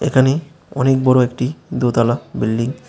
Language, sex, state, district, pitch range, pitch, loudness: Bengali, male, Tripura, West Tripura, 120-135 Hz, 130 Hz, -17 LUFS